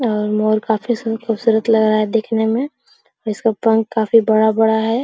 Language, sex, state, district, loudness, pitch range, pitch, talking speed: Hindi, female, Bihar, Araria, -16 LUFS, 215-225 Hz, 220 Hz, 180 wpm